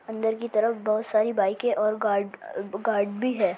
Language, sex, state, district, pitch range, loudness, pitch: Hindi, male, Bihar, Bhagalpur, 205-230 Hz, -26 LUFS, 215 Hz